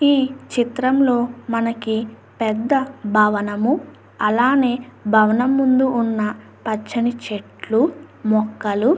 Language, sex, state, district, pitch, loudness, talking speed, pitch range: Telugu, female, Andhra Pradesh, Anantapur, 235 Hz, -19 LUFS, 85 wpm, 215-260 Hz